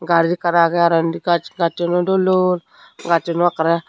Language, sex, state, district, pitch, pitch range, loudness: Chakma, female, Tripura, Unakoti, 170 Hz, 170-175 Hz, -17 LUFS